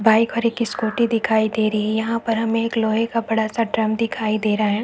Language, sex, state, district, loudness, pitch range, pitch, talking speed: Hindi, female, Chhattisgarh, Raigarh, -20 LUFS, 215-230 Hz, 225 Hz, 235 wpm